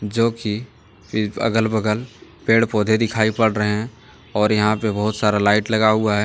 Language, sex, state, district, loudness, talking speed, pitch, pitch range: Hindi, male, Jharkhand, Deoghar, -19 LUFS, 180 wpm, 110 Hz, 105-115 Hz